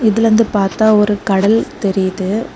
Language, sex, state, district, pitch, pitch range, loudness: Tamil, female, Tamil Nadu, Kanyakumari, 210 Hz, 195-220 Hz, -14 LUFS